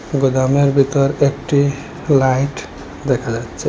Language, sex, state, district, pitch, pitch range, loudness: Bengali, male, Assam, Hailakandi, 140 Hz, 135-140 Hz, -16 LUFS